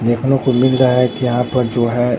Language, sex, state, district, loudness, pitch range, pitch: Hindi, male, Bihar, Katihar, -15 LUFS, 120-130 Hz, 125 Hz